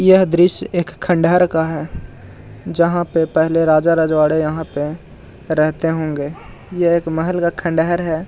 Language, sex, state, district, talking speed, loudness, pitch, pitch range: Hindi, male, Bihar, Jahanabad, 150 wpm, -16 LUFS, 160 Hz, 155-170 Hz